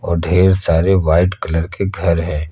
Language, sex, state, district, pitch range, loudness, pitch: Hindi, male, Uttar Pradesh, Lucknow, 80-95 Hz, -15 LUFS, 85 Hz